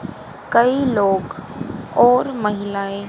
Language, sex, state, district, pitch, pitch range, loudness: Hindi, female, Haryana, Jhajjar, 205 Hz, 200-245 Hz, -18 LUFS